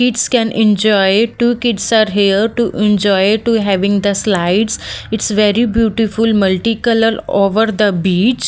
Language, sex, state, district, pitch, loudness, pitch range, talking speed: English, female, Maharashtra, Mumbai Suburban, 215 Hz, -13 LUFS, 200-230 Hz, 140 wpm